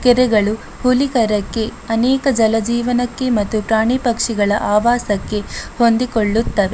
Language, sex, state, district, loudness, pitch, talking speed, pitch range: Kannada, female, Karnataka, Dakshina Kannada, -17 LUFS, 230 Hz, 60 wpm, 215-245 Hz